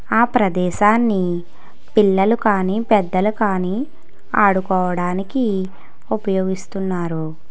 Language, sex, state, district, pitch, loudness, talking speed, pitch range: Telugu, female, Telangana, Hyderabad, 195 Hz, -18 LUFS, 65 wpm, 185-215 Hz